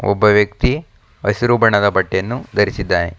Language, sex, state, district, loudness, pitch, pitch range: Kannada, male, Karnataka, Bangalore, -16 LUFS, 100 Hz, 95-105 Hz